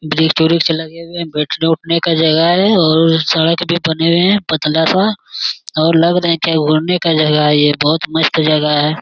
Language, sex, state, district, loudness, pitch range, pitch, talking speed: Hindi, male, Bihar, Jamui, -13 LUFS, 155-170 Hz, 160 Hz, 215 wpm